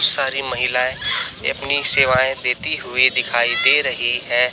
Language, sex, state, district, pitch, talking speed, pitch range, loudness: Hindi, male, Chhattisgarh, Raipur, 125 Hz, 130 wpm, 125-135 Hz, -16 LUFS